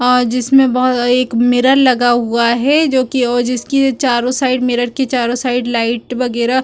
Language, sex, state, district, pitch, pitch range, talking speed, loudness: Hindi, female, Chhattisgarh, Bilaspur, 250 Hz, 240-260 Hz, 170 wpm, -14 LUFS